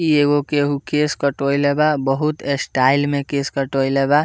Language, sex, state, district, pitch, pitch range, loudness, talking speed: Bhojpuri, male, Bihar, Muzaffarpur, 140 Hz, 140-145 Hz, -18 LUFS, 170 wpm